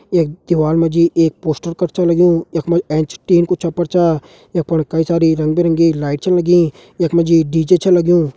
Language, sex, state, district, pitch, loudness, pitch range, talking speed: Hindi, male, Uttarakhand, Tehri Garhwal, 170 Hz, -15 LUFS, 160-175 Hz, 230 wpm